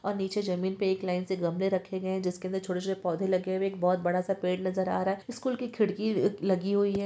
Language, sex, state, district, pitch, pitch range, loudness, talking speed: Hindi, female, Uttarakhand, Tehri Garhwal, 190 Hz, 185-200 Hz, -30 LUFS, 295 wpm